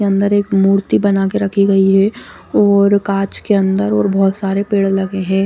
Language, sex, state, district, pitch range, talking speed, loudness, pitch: Hindi, female, Chandigarh, Chandigarh, 195-200 Hz, 200 wpm, -14 LUFS, 195 Hz